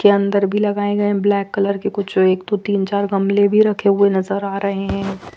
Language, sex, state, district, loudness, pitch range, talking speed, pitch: Hindi, female, Punjab, Fazilka, -17 LUFS, 195-205 Hz, 245 wpm, 200 Hz